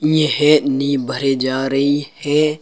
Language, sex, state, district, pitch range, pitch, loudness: Hindi, male, Uttar Pradesh, Saharanpur, 135-150 Hz, 145 Hz, -17 LUFS